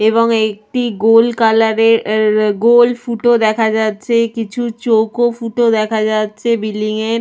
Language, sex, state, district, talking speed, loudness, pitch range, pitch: Bengali, female, West Bengal, Purulia, 140 wpm, -14 LUFS, 215-235 Hz, 225 Hz